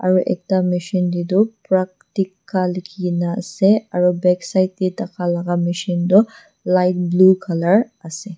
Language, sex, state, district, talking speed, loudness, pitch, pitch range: Nagamese, female, Nagaland, Dimapur, 135 wpm, -18 LUFS, 185 Hz, 180-195 Hz